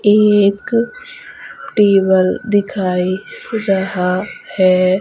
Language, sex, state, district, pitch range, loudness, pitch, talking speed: Hindi, female, Madhya Pradesh, Umaria, 185-210 Hz, -15 LUFS, 200 Hz, 60 wpm